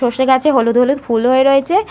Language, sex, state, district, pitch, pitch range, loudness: Bengali, female, West Bengal, Malda, 260 Hz, 245-275 Hz, -13 LUFS